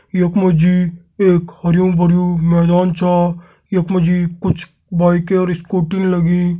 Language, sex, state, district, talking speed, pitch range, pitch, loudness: Garhwali, male, Uttarakhand, Tehri Garhwal, 125 wpm, 175-180 Hz, 175 Hz, -15 LUFS